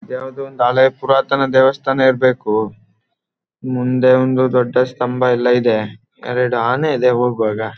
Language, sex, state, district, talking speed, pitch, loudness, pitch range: Kannada, male, Karnataka, Dakshina Kannada, 130 wpm, 125 Hz, -15 LUFS, 125-130 Hz